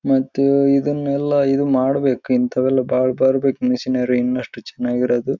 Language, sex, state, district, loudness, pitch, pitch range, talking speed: Kannada, male, Karnataka, Raichur, -18 LUFS, 130 Hz, 125-140 Hz, 110 wpm